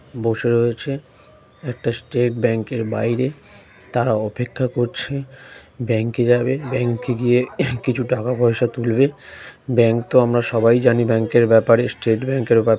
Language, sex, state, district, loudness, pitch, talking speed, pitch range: Bengali, male, West Bengal, Jhargram, -19 LUFS, 120 Hz, 125 wpm, 115-125 Hz